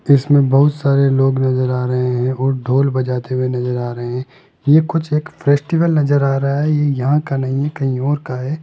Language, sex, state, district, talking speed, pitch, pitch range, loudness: Hindi, male, Rajasthan, Jaipur, 230 wpm, 135 Hz, 130-145 Hz, -16 LUFS